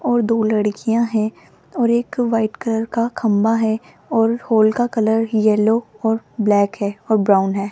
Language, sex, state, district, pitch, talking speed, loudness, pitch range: Hindi, female, Rajasthan, Jaipur, 225 Hz, 170 wpm, -18 LUFS, 215-230 Hz